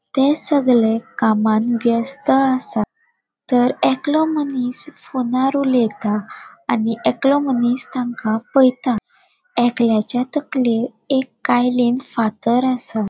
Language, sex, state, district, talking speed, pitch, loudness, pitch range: Konkani, female, Goa, North and South Goa, 95 wpm, 250 Hz, -18 LUFS, 230-270 Hz